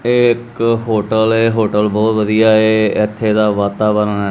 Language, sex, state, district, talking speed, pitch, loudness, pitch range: Punjabi, male, Punjab, Kapurthala, 155 wpm, 110 Hz, -14 LUFS, 105-115 Hz